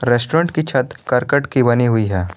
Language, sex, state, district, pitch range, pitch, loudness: Hindi, male, Jharkhand, Garhwa, 120-145 Hz, 125 Hz, -16 LUFS